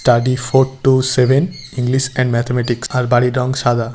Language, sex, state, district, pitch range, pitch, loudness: Bengali, male, West Bengal, Paschim Medinipur, 120-130 Hz, 125 Hz, -16 LUFS